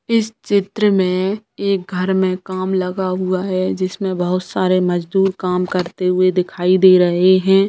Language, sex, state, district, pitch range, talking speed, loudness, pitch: Bhojpuri, female, Bihar, Saran, 180-195 Hz, 165 wpm, -17 LUFS, 185 Hz